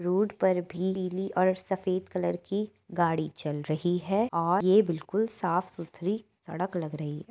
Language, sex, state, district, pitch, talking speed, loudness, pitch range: Hindi, female, Uttar Pradesh, Etah, 180 Hz, 170 wpm, -29 LUFS, 170-190 Hz